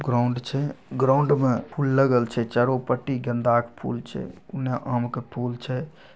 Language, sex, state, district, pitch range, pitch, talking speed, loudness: Angika, male, Bihar, Begusarai, 120-135 Hz, 125 Hz, 185 wpm, -24 LUFS